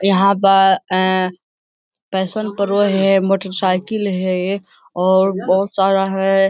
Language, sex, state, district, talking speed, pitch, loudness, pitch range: Hindi, male, Bihar, Jamui, 110 wpm, 195 Hz, -16 LUFS, 185-195 Hz